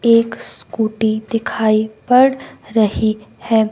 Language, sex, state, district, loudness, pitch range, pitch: Hindi, female, Himachal Pradesh, Shimla, -17 LUFS, 220-230 Hz, 220 Hz